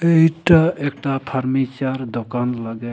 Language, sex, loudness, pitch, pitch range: Sadri, male, -19 LUFS, 135 Hz, 125-160 Hz